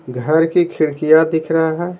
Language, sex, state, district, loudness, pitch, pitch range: Hindi, male, Bihar, Patna, -15 LUFS, 160 Hz, 155-165 Hz